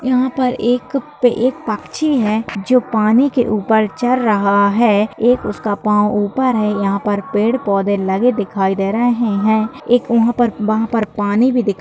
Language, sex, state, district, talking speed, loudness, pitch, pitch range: Hindi, female, Bihar, Bhagalpur, 175 wpm, -16 LUFS, 220 Hz, 205-245 Hz